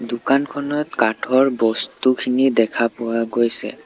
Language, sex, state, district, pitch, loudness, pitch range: Assamese, male, Assam, Sonitpur, 120 Hz, -19 LUFS, 115-135 Hz